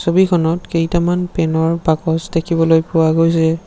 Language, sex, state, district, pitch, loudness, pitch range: Assamese, male, Assam, Sonitpur, 165 Hz, -15 LUFS, 160-175 Hz